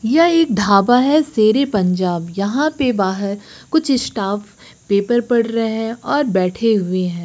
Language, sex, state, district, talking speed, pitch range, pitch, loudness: Hindi, female, Uttar Pradesh, Lucknow, 165 wpm, 200-255 Hz, 220 Hz, -17 LUFS